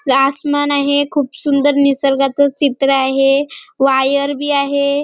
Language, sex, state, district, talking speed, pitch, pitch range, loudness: Marathi, female, Maharashtra, Nagpur, 120 wpm, 280 Hz, 275-285 Hz, -14 LUFS